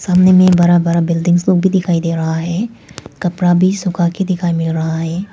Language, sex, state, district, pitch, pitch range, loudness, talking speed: Hindi, female, Arunachal Pradesh, Papum Pare, 175 Hz, 170-185 Hz, -14 LUFS, 200 wpm